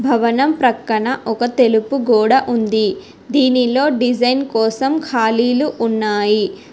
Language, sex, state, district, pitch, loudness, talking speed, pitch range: Telugu, female, Telangana, Hyderabad, 245 Hz, -16 LUFS, 100 wpm, 225-265 Hz